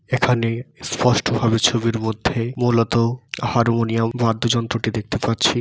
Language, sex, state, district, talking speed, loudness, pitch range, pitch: Bengali, male, West Bengal, Dakshin Dinajpur, 105 wpm, -20 LUFS, 115-120 Hz, 115 Hz